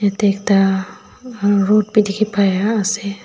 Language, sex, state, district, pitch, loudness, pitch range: Nagamese, female, Nagaland, Dimapur, 205 Hz, -16 LUFS, 200-215 Hz